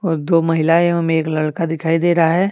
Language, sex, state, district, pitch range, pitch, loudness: Hindi, male, Jharkhand, Deoghar, 160-170 Hz, 165 Hz, -16 LUFS